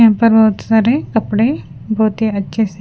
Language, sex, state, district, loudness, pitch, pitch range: Hindi, female, Punjab, Fazilka, -14 LUFS, 220 Hz, 215-230 Hz